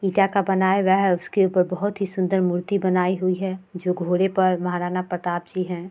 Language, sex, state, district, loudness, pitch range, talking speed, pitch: Hindi, female, Bihar, Vaishali, -22 LUFS, 180-190 Hz, 215 wpm, 185 Hz